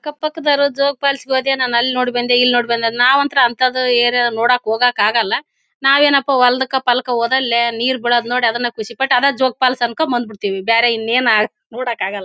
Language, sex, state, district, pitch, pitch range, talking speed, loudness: Kannada, female, Karnataka, Bellary, 245 Hz, 235-265 Hz, 155 wpm, -15 LUFS